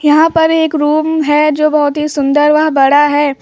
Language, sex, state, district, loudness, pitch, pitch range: Hindi, female, Uttar Pradesh, Lucknow, -11 LUFS, 300 Hz, 290-310 Hz